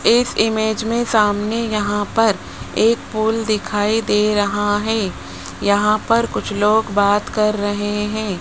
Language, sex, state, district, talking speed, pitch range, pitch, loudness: Hindi, male, Rajasthan, Jaipur, 145 wpm, 205-220 Hz, 210 Hz, -18 LUFS